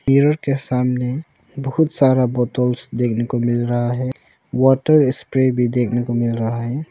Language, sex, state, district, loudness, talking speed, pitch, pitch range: Hindi, male, Arunachal Pradesh, Longding, -18 LUFS, 165 wpm, 125 Hz, 120-135 Hz